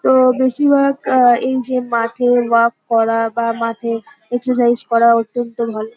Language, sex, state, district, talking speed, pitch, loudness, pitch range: Bengali, female, West Bengal, North 24 Parganas, 140 wpm, 240 Hz, -15 LUFS, 230-255 Hz